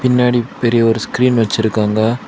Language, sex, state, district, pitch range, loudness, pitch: Tamil, male, Tamil Nadu, Kanyakumari, 110-125 Hz, -15 LUFS, 115 Hz